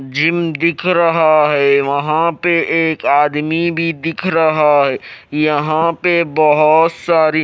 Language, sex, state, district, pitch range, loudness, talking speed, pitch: Hindi, male, Odisha, Malkangiri, 150-165 Hz, -14 LUFS, 130 wpm, 160 Hz